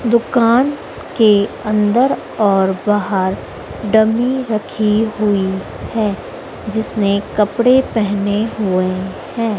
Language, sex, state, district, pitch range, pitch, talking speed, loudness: Hindi, female, Madhya Pradesh, Dhar, 200-230 Hz, 215 Hz, 85 wpm, -16 LUFS